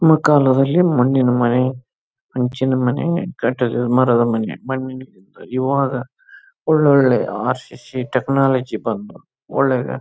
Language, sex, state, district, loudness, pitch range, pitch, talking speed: Kannada, male, Karnataka, Chamarajanagar, -18 LUFS, 125-140 Hz, 130 Hz, 90 wpm